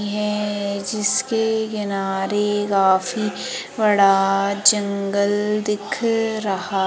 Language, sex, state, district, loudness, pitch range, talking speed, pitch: Hindi, female, Madhya Pradesh, Umaria, -20 LUFS, 200-210 Hz, 70 wpm, 205 Hz